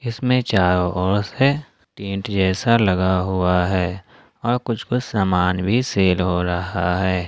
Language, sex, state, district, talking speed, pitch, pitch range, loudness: Hindi, male, Jharkhand, Ranchi, 150 wpm, 95 Hz, 90-115 Hz, -20 LUFS